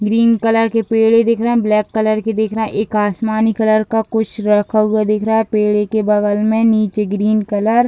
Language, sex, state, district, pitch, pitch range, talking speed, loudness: Hindi, female, Bihar, Sitamarhi, 215 Hz, 210-225 Hz, 235 wpm, -15 LUFS